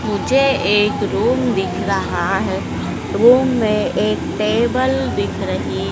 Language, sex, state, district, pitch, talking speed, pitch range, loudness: Hindi, female, Madhya Pradesh, Dhar, 250 Hz, 120 wpm, 220-265 Hz, -17 LUFS